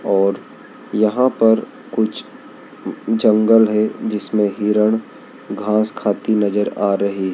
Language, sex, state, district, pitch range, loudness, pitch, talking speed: Hindi, male, Madhya Pradesh, Dhar, 100-110 Hz, -17 LUFS, 105 Hz, 105 wpm